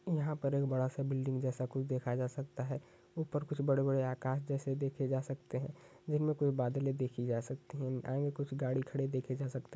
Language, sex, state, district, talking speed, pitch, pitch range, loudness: Hindi, male, Chhattisgarh, Sukma, 220 wpm, 135 Hz, 130-140 Hz, -37 LUFS